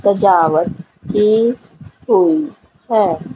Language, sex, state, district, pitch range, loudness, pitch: Hindi, female, Haryana, Rohtak, 170-240 Hz, -15 LUFS, 205 Hz